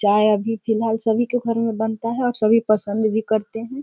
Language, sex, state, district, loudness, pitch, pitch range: Hindi, female, Bihar, Sitamarhi, -20 LUFS, 225 Hz, 215-230 Hz